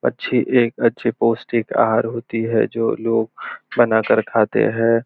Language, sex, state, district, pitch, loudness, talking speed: Hindi, male, Maharashtra, Nagpur, 115 Hz, -19 LUFS, 155 wpm